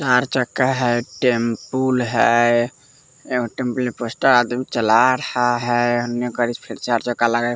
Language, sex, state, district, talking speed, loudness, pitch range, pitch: Hindi, male, Bihar, West Champaran, 160 wpm, -19 LUFS, 120-130 Hz, 120 Hz